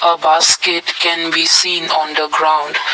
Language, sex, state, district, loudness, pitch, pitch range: English, male, Assam, Kamrup Metropolitan, -13 LUFS, 165 Hz, 155-170 Hz